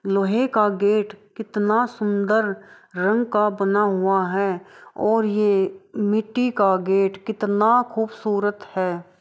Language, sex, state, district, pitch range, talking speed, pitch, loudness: Maithili, female, Bihar, Araria, 195-215 Hz, 115 wpm, 205 Hz, -21 LUFS